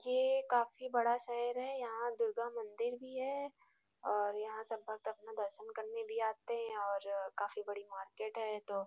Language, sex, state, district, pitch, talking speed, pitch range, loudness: Hindi, female, Bihar, Gopalganj, 225 Hz, 185 wpm, 210-240 Hz, -39 LUFS